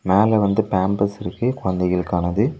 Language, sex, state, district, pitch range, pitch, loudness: Tamil, male, Tamil Nadu, Nilgiris, 90-110 Hz, 100 Hz, -20 LUFS